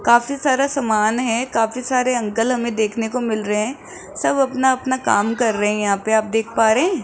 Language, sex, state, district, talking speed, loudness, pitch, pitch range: Hindi, female, Rajasthan, Jaipur, 215 wpm, -19 LUFS, 230 Hz, 220-260 Hz